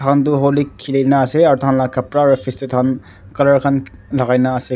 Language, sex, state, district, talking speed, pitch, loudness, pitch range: Nagamese, male, Nagaland, Dimapur, 265 wpm, 135 Hz, -15 LUFS, 125-140 Hz